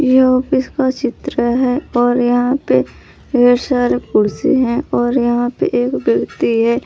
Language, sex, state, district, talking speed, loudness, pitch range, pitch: Hindi, female, Jharkhand, Palamu, 165 wpm, -15 LUFS, 240-260 Hz, 250 Hz